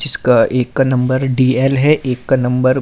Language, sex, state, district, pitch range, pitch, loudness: Hindi, male, Delhi, New Delhi, 125-135 Hz, 130 Hz, -14 LUFS